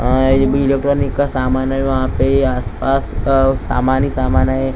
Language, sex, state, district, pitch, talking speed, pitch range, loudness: Hindi, male, Maharashtra, Gondia, 135 Hz, 165 wpm, 130-135 Hz, -16 LUFS